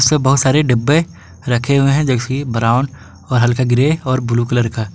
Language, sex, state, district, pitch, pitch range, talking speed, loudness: Hindi, male, Jharkhand, Garhwa, 125 Hz, 120-140 Hz, 195 wpm, -15 LUFS